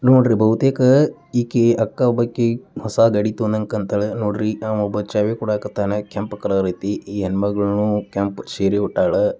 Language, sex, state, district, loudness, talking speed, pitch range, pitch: Kannada, male, Karnataka, Dakshina Kannada, -19 LUFS, 140 wpm, 100-115 Hz, 105 Hz